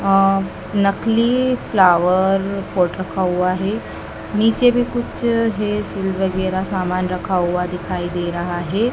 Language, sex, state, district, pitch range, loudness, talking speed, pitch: Hindi, female, Madhya Pradesh, Dhar, 180-210 Hz, -19 LUFS, 120 wpm, 190 Hz